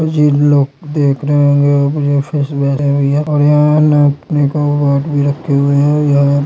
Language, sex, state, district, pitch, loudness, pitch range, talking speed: Hindi, male, Maharashtra, Dhule, 145 Hz, -12 LUFS, 140-150 Hz, 205 wpm